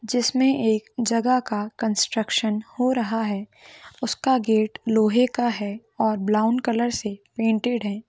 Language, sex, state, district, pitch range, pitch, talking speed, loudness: Hindi, female, Rajasthan, Churu, 215-245 Hz, 225 Hz, 150 wpm, -23 LUFS